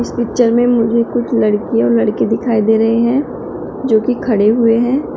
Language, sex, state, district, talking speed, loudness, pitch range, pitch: Hindi, female, Uttar Pradesh, Shamli, 195 wpm, -14 LUFS, 220-240 Hz, 230 Hz